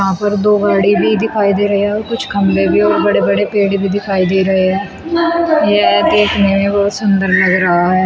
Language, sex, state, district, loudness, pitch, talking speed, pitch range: Hindi, female, Uttar Pradesh, Shamli, -13 LUFS, 200 Hz, 210 wpm, 190-205 Hz